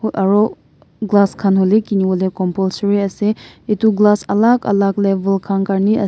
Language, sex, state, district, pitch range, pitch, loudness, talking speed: Nagamese, male, Nagaland, Kohima, 195-210 Hz, 200 Hz, -16 LUFS, 130 wpm